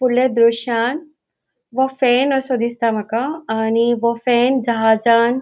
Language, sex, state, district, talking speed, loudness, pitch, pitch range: Konkani, female, Goa, North and South Goa, 135 wpm, -17 LUFS, 240 Hz, 230-260 Hz